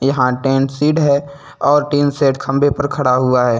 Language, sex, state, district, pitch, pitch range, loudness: Hindi, male, Uttar Pradesh, Lucknow, 140 Hz, 130-145 Hz, -15 LUFS